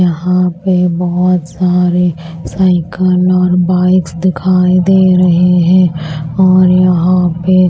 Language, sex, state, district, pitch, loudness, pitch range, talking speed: Hindi, female, Maharashtra, Washim, 180 Hz, -11 LUFS, 175-185 Hz, 110 wpm